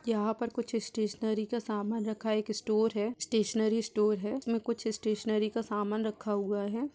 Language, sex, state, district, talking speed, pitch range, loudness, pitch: Hindi, female, Uttar Pradesh, Budaun, 190 wpm, 215-230 Hz, -32 LUFS, 220 Hz